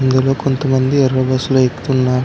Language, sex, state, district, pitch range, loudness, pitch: Telugu, male, Telangana, Karimnagar, 130-135 Hz, -15 LUFS, 130 Hz